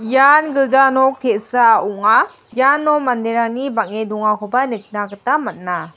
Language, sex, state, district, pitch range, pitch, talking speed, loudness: Garo, female, Meghalaya, South Garo Hills, 215-270 Hz, 235 Hz, 120 wpm, -16 LUFS